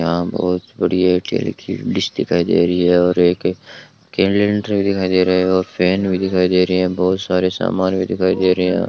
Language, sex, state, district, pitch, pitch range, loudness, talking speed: Hindi, male, Rajasthan, Bikaner, 90 Hz, 90-95 Hz, -17 LUFS, 215 wpm